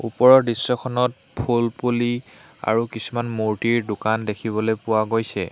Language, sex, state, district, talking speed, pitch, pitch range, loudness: Assamese, male, Assam, Hailakandi, 110 wpm, 115 Hz, 110-120 Hz, -21 LUFS